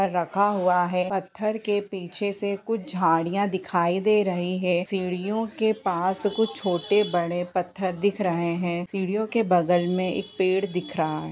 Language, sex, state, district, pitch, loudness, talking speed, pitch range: Hindi, female, Bihar, Bhagalpur, 185 Hz, -25 LUFS, 180 wpm, 175-205 Hz